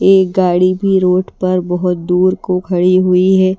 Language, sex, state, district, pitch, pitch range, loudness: Hindi, female, Bihar, Patna, 185 Hz, 180-190 Hz, -13 LUFS